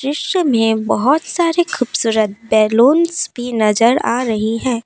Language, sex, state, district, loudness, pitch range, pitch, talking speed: Hindi, female, Assam, Kamrup Metropolitan, -15 LUFS, 225-310 Hz, 245 Hz, 135 wpm